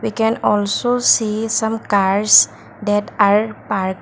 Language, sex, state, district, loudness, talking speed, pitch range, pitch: English, female, Assam, Kamrup Metropolitan, -16 LUFS, 120 wpm, 200-220 Hz, 210 Hz